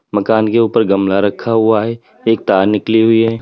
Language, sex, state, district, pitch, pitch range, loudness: Hindi, male, Uttar Pradesh, Lalitpur, 110 Hz, 100-115 Hz, -13 LUFS